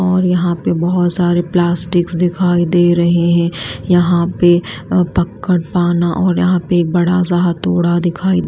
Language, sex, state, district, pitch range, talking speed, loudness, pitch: Hindi, female, Himachal Pradesh, Shimla, 175-180 Hz, 165 wpm, -14 LUFS, 175 Hz